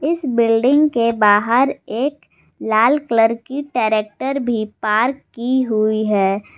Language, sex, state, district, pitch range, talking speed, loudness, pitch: Hindi, female, Jharkhand, Garhwa, 215-270 Hz, 125 wpm, -17 LUFS, 230 Hz